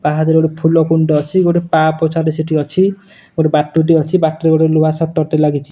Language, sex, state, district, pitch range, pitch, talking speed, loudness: Odia, male, Odisha, Nuapada, 155-165 Hz, 160 Hz, 220 wpm, -14 LUFS